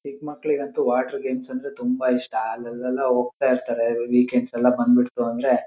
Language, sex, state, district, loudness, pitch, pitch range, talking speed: Kannada, male, Karnataka, Shimoga, -23 LUFS, 125 Hz, 120-130 Hz, 150 wpm